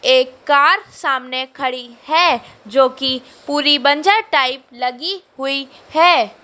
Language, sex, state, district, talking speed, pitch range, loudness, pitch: Hindi, female, Madhya Pradesh, Dhar, 120 wpm, 260-335 Hz, -16 LUFS, 275 Hz